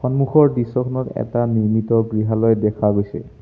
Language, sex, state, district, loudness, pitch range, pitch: Assamese, male, Assam, Sonitpur, -18 LUFS, 110-125 Hz, 115 Hz